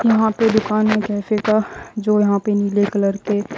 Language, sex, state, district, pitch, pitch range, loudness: Hindi, female, Haryana, Jhajjar, 210 Hz, 205-215 Hz, -18 LUFS